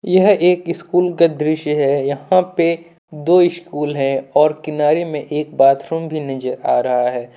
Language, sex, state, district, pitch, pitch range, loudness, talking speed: Hindi, male, Jharkhand, Deoghar, 155 Hz, 140-170 Hz, -17 LUFS, 170 wpm